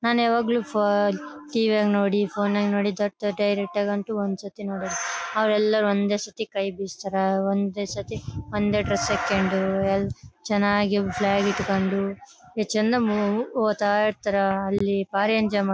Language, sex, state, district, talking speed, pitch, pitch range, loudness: Kannada, female, Karnataka, Bellary, 140 wpm, 205 Hz, 195-210 Hz, -24 LUFS